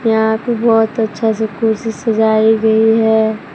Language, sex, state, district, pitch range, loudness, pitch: Hindi, female, Jharkhand, Palamu, 220-225 Hz, -14 LUFS, 220 Hz